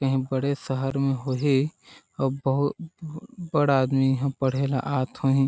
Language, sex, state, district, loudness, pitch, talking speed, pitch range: Chhattisgarhi, male, Chhattisgarh, Sarguja, -25 LUFS, 135 Hz, 155 wpm, 135-140 Hz